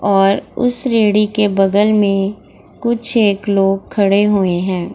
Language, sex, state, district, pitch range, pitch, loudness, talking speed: Hindi, female, Bihar, Gaya, 195-215 Hz, 205 Hz, -15 LUFS, 145 wpm